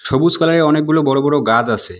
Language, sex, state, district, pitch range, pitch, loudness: Bengali, male, West Bengal, Alipurduar, 145-160 Hz, 155 Hz, -14 LUFS